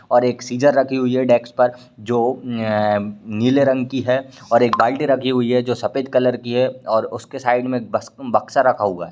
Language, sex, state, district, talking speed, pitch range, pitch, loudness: Hindi, male, Uttar Pradesh, Varanasi, 215 wpm, 120-130 Hz, 125 Hz, -19 LUFS